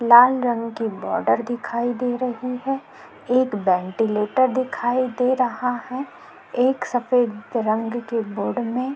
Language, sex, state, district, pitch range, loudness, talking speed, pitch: Hindi, female, Chhattisgarh, Korba, 230-255 Hz, -22 LUFS, 140 wpm, 245 Hz